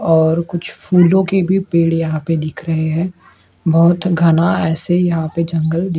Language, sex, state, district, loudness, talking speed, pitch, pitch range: Hindi, male, Maharashtra, Gondia, -15 LUFS, 190 wpm, 165 Hz, 160-175 Hz